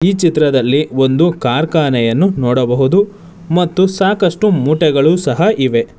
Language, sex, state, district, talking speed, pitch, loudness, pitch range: Kannada, male, Karnataka, Bangalore, 90 wpm, 160 Hz, -13 LUFS, 135-185 Hz